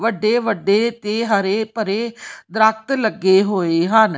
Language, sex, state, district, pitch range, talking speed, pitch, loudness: Punjabi, female, Punjab, Kapurthala, 200-225 Hz, 130 wpm, 220 Hz, -18 LUFS